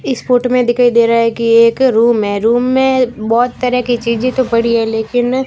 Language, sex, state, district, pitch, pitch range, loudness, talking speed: Hindi, female, Rajasthan, Barmer, 240 Hz, 230-250 Hz, -12 LUFS, 230 wpm